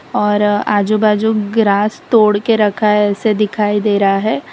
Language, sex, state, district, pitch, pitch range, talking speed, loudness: Hindi, female, Gujarat, Valsad, 210 Hz, 205-215 Hz, 170 wpm, -14 LUFS